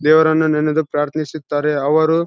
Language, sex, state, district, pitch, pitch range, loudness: Kannada, male, Karnataka, Bellary, 155 Hz, 150-160 Hz, -17 LUFS